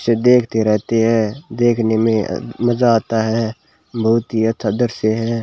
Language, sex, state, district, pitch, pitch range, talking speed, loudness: Hindi, male, Rajasthan, Bikaner, 115 Hz, 110-120 Hz, 155 wpm, -17 LUFS